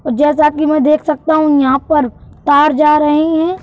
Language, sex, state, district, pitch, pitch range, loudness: Hindi, male, Madhya Pradesh, Bhopal, 300 Hz, 295-310 Hz, -12 LUFS